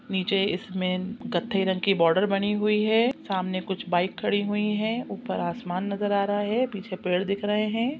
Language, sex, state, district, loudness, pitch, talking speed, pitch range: Hindi, female, Chhattisgarh, Sukma, -26 LUFS, 200 Hz, 195 wpm, 185-210 Hz